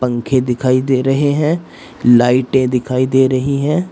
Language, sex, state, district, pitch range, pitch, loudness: Hindi, male, Uttar Pradesh, Saharanpur, 125-140 Hz, 130 Hz, -14 LUFS